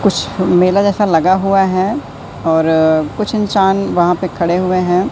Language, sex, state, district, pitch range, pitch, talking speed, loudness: Hindi, male, Madhya Pradesh, Katni, 175-195 Hz, 185 Hz, 165 wpm, -14 LUFS